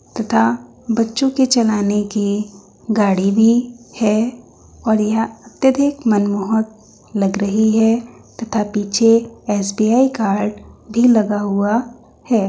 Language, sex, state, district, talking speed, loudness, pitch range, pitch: Hindi, female, Uttar Pradesh, Muzaffarnagar, 110 wpm, -17 LUFS, 205-230 Hz, 220 Hz